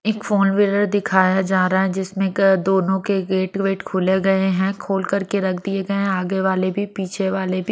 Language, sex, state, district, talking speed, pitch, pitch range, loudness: Hindi, female, Maharashtra, Mumbai Suburban, 210 wpm, 190 Hz, 190-200 Hz, -19 LUFS